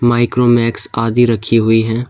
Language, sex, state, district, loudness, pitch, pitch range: Hindi, male, Uttar Pradesh, Shamli, -13 LUFS, 115 Hz, 115-120 Hz